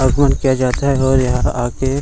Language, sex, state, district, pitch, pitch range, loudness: Hindi, male, Bihar, Gaya, 130 Hz, 130-135 Hz, -16 LUFS